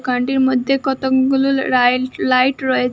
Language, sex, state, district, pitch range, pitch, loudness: Bengali, female, Assam, Hailakandi, 255-270 Hz, 260 Hz, -16 LUFS